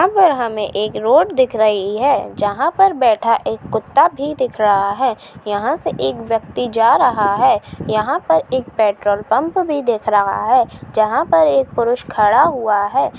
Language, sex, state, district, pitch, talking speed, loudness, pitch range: Chhattisgarhi, female, Chhattisgarh, Kabirdham, 230 Hz, 180 wpm, -16 LUFS, 210-270 Hz